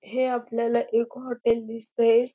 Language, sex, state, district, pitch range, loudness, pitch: Marathi, female, Maharashtra, Dhule, 230-245 Hz, -25 LUFS, 235 Hz